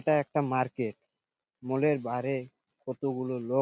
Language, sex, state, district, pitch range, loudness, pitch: Bengali, male, West Bengal, Purulia, 125-140 Hz, -31 LUFS, 130 Hz